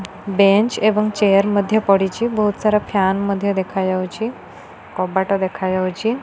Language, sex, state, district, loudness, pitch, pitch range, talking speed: Odia, female, Odisha, Khordha, -18 LUFS, 200 Hz, 190-210 Hz, 115 wpm